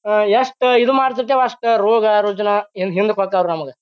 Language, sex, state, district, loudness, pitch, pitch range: Kannada, male, Karnataka, Bijapur, -16 LUFS, 210 Hz, 200-250 Hz